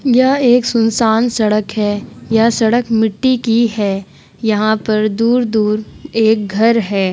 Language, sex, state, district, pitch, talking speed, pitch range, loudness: Hindi, female, Uttar Pradesh, Muzaffarnagar, 225 Hz, 135 wpm, 215-235 Hz, -14 LUFS